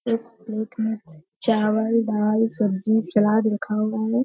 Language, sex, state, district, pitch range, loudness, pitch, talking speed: Hindi, female, Bihar, Purnia, 210-225 Hz, -22 LUFS, 220 Hz, 155 wpm